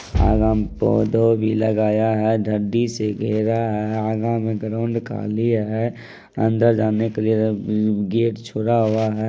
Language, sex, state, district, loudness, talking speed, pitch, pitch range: Maithili, male, Bihar, Madhepura, -20 LUFS, 155 wpm, 110 Hz, 110-115 Hz